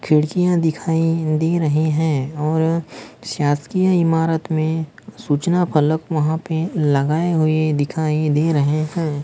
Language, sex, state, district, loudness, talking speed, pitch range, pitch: Hindi, male, Maharashtra, Gondia, -19 LUFS, 125 wpm, 150-165 Hz, 155 Hz